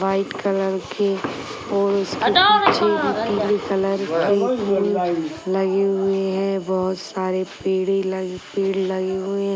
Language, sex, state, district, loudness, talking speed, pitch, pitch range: Hindi, female, Uttar Pradesh, Gorakhpur, -21 LUFS, 125 wpm, 195 Hz, 190-200 Hz